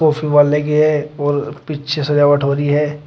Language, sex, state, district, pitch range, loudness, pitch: Hindi, male, Uttar Pradesh, Shamli, 145-150 Hz, -15 LUFS, 150 Hz